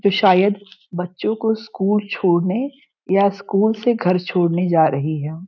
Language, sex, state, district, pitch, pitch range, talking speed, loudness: Hindi, male, Uttar Pradesh, Gorakhpur, 195 Hz, 180-210 Hz, 155 wpm, -19 LUFS